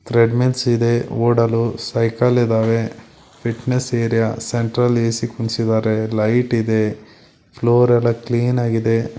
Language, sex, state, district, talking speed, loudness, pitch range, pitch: Kannada, male, Karnataka, Belgaum, 100 wpm, -18 LUFS, 115-120 Hz, 115 Hz